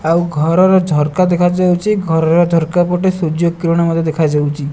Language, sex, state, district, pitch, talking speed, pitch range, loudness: Odia, male, Odisha, Nuapada, 170 Hz, 150 wpm, 160-180 Hz, -14 LUFS